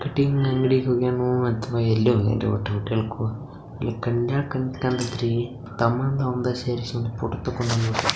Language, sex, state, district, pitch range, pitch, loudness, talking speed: Kannada, male, Karnataka, Bijapur, 115-130 Hz, 120 Hz, -24 LUFS, 60 wpm